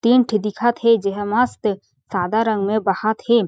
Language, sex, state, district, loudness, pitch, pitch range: Chhattisgarhi, female, Chhattisgarh, Jashpur, -19 LUFS, 220 Hz, 205-235 Hz